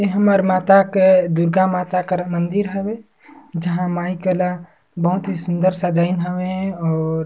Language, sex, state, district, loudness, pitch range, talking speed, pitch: Surgujia, male, Chhattisgarh, Sarguja, -18 LUFS, 175-195 Hz, 150 wpm, 180 Hz